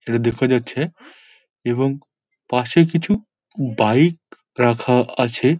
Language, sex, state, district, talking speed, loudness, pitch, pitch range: Bengali, male, West Bengal, Dakshin Dinajpur, 95 wpm, -19 LUFS, 130 Hz, 120-155 Hz